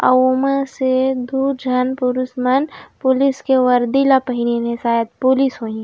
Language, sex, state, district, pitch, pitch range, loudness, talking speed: Chhattisgarhi, female, Chhattisgarh, Raigarh, 260 Hz, 250-265 Hz, -17 LUFS, 155 wpm